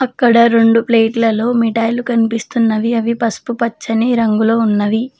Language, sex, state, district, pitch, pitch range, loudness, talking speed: Telugu, female, Telangana, Mahabubabad, 230 Hz, 225-235 Hz, -14 LUFS, 115 wpm